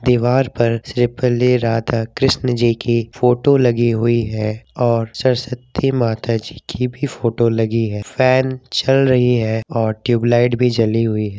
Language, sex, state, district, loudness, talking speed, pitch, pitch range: Hindi, male, Jharkhand, Jamtara, -17 LUFS, 165 wpm, 120 Hz, 115-125 Hz